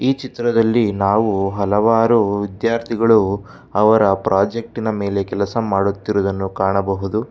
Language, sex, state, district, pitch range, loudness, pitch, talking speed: Kannada, male, Karnataka, Bangalore, 100-115 Hz, -18 LUFS, 105 Hz, 80 wpm